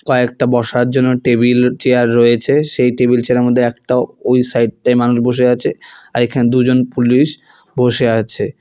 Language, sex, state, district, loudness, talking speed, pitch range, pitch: Bengali, male, West Bengal, Alipurduar, -13 LUFS, 165 wpm, 120-125 Hz, 125 Hz